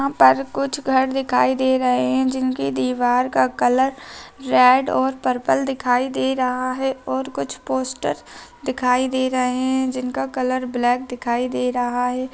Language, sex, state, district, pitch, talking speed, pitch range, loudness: Hindi, female, Bihar, Araria, 255 Hz, 160 wpm, 245-260 Hz, -20 LUFS